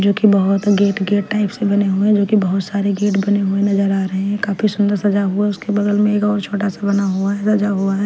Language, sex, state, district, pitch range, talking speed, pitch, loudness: Hindi, female, Bihar, Patna, 200-205 Hz, 300 wpm, 200 Hz, -17 LUFS